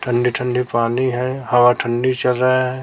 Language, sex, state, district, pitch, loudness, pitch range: Hindi, female, Chhattisgarh, Raipur, 125 Hz, -17 LUFS, 120-130 Hz